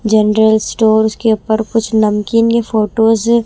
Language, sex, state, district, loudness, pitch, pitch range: Hindi, female, Himachal Pradesh, Shimla, -13 LUFS, 220 Hz, 220-225 Hz